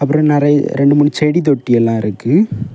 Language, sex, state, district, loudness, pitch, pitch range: Tamil, male, Tamil Nadu, Kanyakumari, -13 LUFS, 140 Hz, 120-145 Hz